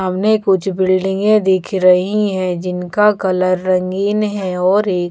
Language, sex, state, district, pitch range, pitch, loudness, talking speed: Hindi, female, Bihar, Patna, 185-205 Hz, 190 Hz, -15 LUFS, 140 wpm